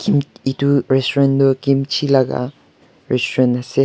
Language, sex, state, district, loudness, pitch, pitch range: Nagamese, male, Nagaland, Kohima, -17 LUFS, 135 Hz, 130-140 Hz